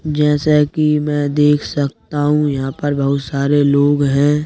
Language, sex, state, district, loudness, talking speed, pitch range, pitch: Hindi, male, Madhya Pradesh, Bhopal, -15 LUFS, 160 wpm, 140-150 Hz, 145 Hz